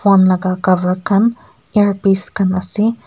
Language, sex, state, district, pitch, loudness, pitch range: Nagamese, female, Nagaland, Kohima, 195 Hz, -15 LUFS, 185-205 Hz